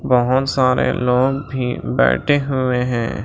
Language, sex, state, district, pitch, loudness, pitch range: Hindi, male, Maharashtra, Washim, 130 Hz, -18 LUFS, 125-135 Hz